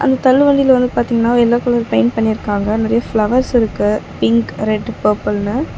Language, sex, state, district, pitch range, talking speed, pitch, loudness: Tamil, female, Tamil Nadu, Chennai, 210-245 Hz, 165 wpm, 230 Hz, -15 LUFS